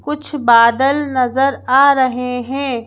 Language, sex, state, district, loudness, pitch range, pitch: Hindi, female, Madhya Pradesh, Bhopal, -14 LUFS, 250-280 Hz, 265 Hz